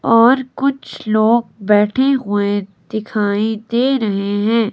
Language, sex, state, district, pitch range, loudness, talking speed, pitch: Hindi, female, Himachal Pradesh, Shimla, 205-240 Hz, -16 LUFS, 115 wpm, 215 Hz